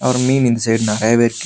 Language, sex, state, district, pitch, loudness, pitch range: Tamil, male, Tamil Nadu, Nilgiris, 115 Hz, -15 LUFS, 115-125 Hz